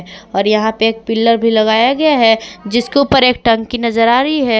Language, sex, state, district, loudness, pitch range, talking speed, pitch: Hindi, female, Jharkhand, Palamu, -13 LUFS, 220-245 Hz, 220 wpm, 230 Hz